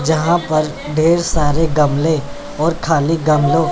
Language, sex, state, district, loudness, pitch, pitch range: Hindi, male, Chandigarh, Chandigarh, -16 LUFS, 155 Hz, 150-165 Hz